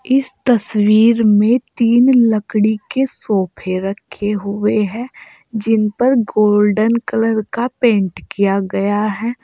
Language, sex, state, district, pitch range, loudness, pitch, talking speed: Hindi, female, Uttar Pradesh, Saharanpur, 205-235 Hz, -15 LUFS, 215 Hz, 120 wpm